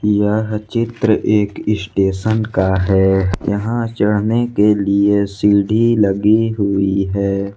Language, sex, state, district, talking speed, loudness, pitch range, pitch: Hindi, male, Jharkhand, Ranchi, 110 wpm, -16 LUFS, 100-110 Hz, 105 Hz